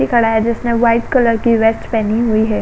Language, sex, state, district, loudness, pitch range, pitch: Hindi, female, Uttar Pradesh, Budaun, -14 LUFS, 225-235 Hz, 230 Hz